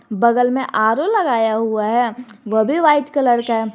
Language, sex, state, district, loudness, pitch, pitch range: Hindi, female, Jharkhand, Garhwa, -17 LUFS, 235 Hz, 220-260 Hz